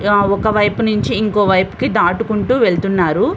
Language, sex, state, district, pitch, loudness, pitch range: Telugu, female, Andhra Pradesh, Visakhapatnam, 205 Hz, -15 LUFS, 195-215 Hz